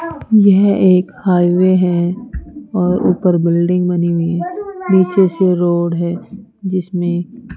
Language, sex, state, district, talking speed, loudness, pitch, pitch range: Hindi, female, Rajasthan, Jaipur, 120 wpm, -14 LUFS, 185 Hz, 175-200 Hz